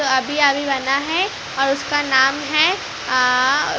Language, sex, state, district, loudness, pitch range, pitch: Hindi, female, Bihar, Patna, -17 LUFS, 265-295 Hz, 275 Hz